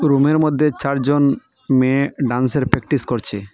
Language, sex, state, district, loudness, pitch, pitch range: Bengali, male, Assam, Hailakandi, -18 LUFS, 140 Hz, 130-145 Hz